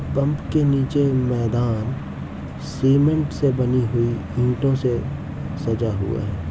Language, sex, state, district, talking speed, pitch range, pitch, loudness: Hindi, male, Uttar Pradesh, Etah, 120 wpm, 110-135 Hz, 125 Hz, -21 LUFS